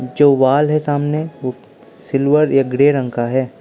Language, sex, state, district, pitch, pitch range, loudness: Hindi, male, Arunachal Pradesh, Lower Dibang Valley, 140 Hz, 130-145 Hz, -16 LUFS